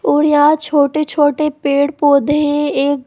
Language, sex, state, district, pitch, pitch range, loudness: Hindi, female, Bihar, Sitamarhi, 290 Hz, 285-300 Hz, -14 LUFS